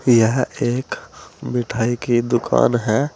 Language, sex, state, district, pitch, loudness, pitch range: Hindi, male, Uttar Pradesh, Saharanpur, 120 Hz, -19 LUFS, 115-125 Hz